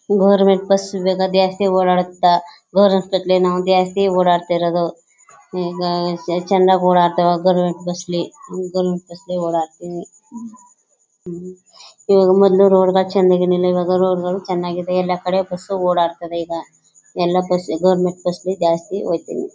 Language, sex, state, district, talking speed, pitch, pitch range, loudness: Kannada, female, Karnataka, Chamarajanagar, 125 wpm, 180 Hz, 175-190 Hz, -17 LUFS